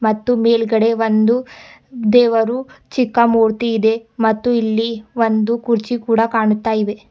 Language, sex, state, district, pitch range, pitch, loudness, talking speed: Kannada, female, Karnataka, Bidar, 220-235 Hz, 225 Hz, -16 LUFS, 110 wpm